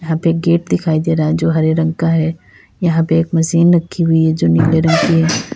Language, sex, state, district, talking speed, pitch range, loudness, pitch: Hindi, female, Uttar Pradesh, Lalitpur, 250 wpm, 160-165 Hz, -14 LUFS, 165 Hz